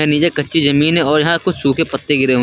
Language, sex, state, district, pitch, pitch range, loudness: Hindi, male, Uttar Pradesh, Lucknow, 150 Hz, 140-165 Hz, -14 LUFS